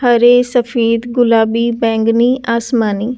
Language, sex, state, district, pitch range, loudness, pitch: Hindi, female, Delhi, New Delhi, 230-245 Hz, -13 LUFS, 235 Hz